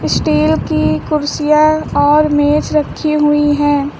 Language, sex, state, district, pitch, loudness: Hindi, female, Uttar Pradesh, Lucknow, 290 Hz, -13 LUFS